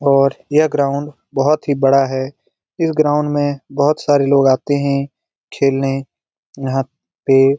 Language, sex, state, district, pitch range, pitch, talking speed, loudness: Hindi, male, Bihar, Saran, 135-145 Hz, 140 Hz, 140 wpm, -16 LUFS